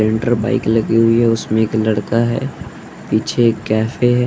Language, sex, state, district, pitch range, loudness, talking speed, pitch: Hindi, male, Bihar, West Champaran, 110-120 Hz, -16 LUFS, 180 wpm, 115 Hz